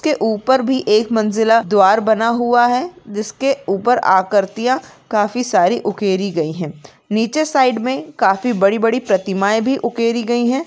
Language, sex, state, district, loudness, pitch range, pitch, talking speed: Hindi, female, Maharashtra, Aurangabad, -16 LUFS, 200-250 Hz, 225 Hz, 155 wpm